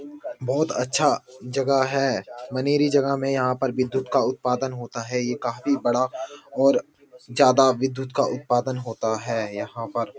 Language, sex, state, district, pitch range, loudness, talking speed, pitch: Hindi, male, Uttarakhand, Uttarkashi, 120-135 Hz, -23 LUFS, 155 wpm, 130 Hz